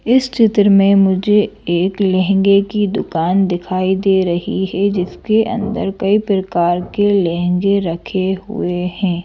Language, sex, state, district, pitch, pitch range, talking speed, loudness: Hindi, female, Madhya Pradesh, Bhopal, 195 Hz, 180-205 Hz, 135 wpm, -15 LUFS